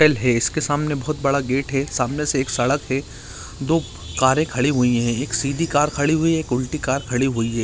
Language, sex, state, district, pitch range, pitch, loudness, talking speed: Hindi, male, Bihar, Gaya, 125-150 Hz, 135 Hz, -21 LUFS, 235 wpm